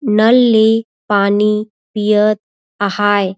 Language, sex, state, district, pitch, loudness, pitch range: Surgujia, female, Chhattisgarh, Sarguja, 210 Hz, -14 LUFS, 205-220 Hz